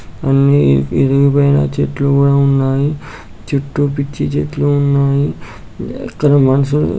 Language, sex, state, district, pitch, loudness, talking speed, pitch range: Telugu, male, Andhra Pradesh, Guntur, 140 Hz, -14 LUFS, 105 wpm, 115-140 Hz